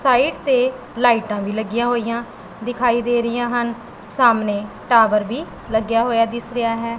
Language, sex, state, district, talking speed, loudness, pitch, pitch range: Punjabi, female, Punjab, Pathankot, 155 wpm, -19 LUFS, 235 Hz, 225-245 Hz